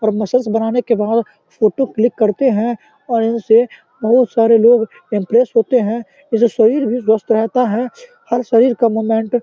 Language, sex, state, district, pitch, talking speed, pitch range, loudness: Hindi, male, Bihar, Samastipur, 230 Hz, 185 wpm, 220-250 Hz, -15 LUFS